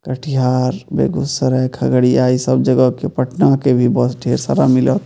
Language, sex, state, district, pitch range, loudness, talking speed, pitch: Maithili, male, Bihar, Purnia, 125-130 Hz, -15 LUFS, 165 wpm, 125 Hz